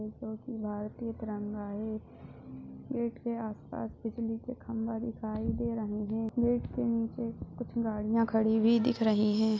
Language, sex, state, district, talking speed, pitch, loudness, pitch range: Hindi, female, Chhattisgarh, Balrampur, 145 wpm, 225 Hz, -33 LUFS, 215-230 Hz